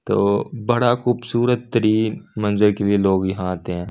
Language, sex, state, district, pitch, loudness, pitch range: Hindi, male, Delhi, New Delhi, 105 Hz, -19 LUFS, 100-120 Hz